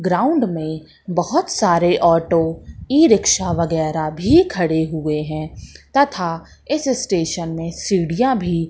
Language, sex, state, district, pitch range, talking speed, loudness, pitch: Hindi, female, Madhya Pradesh, Katni, 165-240 Hz, 125 wpm, -18 LUFS, 170 Hz